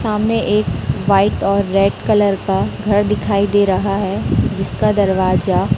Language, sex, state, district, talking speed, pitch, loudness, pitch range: Hindi, female, Chhattisgarh, Raipur, 145 wpm, 200 Hz, -16 LUFS, 190-205 Hz